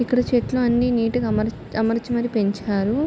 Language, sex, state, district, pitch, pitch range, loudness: Telugu, female, Andhra Pradesh, Srikakulam, 235 Hz, 220-245 Hz, -21 LUFS